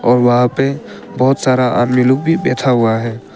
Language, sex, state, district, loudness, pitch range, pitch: Hindi, male, Arunachal Pradesh, Papum Pare, -14 LUFS, 120-130 Hz, 125 Hz